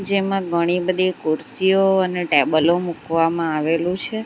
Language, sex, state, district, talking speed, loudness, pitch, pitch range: Gujarati, female, Gujarat, Valsad, 125 wpm, -19 LUFS, 180 Hz, 165-190 Hz